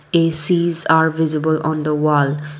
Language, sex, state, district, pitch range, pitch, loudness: English, female, Assam, Kamrup Metropolitan, 150-160 Hz, 155 Hz, -16 LUFS